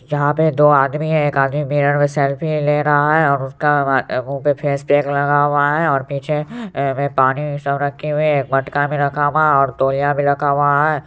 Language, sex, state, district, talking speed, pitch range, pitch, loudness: Hindi, male, Bihar, Supaul, 210 wpm, 140-150 Hz, 145 Hz, -16 LUFS